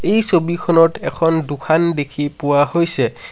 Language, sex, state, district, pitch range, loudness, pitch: Assamese, male, Assam, Sonitpur, 145-170 Hz, -16 LUFS, 165 Hz